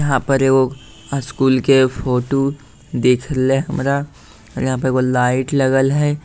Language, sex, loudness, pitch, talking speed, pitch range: Bhojpuri, male, -17 LUFS, 135 Hz, 145 wpm, 130-140 Hz